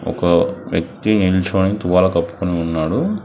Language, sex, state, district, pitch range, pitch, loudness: Telugu, male, Telangana, Hyderabad, 85-95 Hz, 90 Hz, -17 LUFS